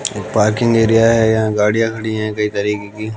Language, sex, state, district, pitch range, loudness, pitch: Hindi, male, Haryana, Jhajjar, 105-115 Hz, -15 LUFS, 110 Hz